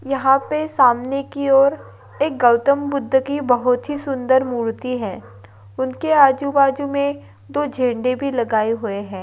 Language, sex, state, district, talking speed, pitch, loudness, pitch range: Hindi, female, Bihar, Madhepura, 135 wpm, 265 Hz, -18 LUFS, 240-280 Hz